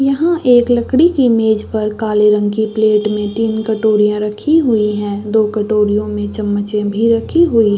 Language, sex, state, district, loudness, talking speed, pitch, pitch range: Hindi, female, Chhattisgarh, Raigarh, -14 LUFS, 185 wpm, 215 Hz, 210-230 Hz